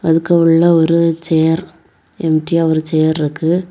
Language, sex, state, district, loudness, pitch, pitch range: Tamil, female, Tamil Nadu, Kanyakumari, -14 LUFS, 165 Hz, 160-170 Hz